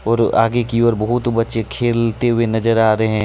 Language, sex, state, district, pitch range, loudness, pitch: Hindi, male, Jharkhand, Deoghar, 110-115 Hz, -17 LUFS, 115 Hz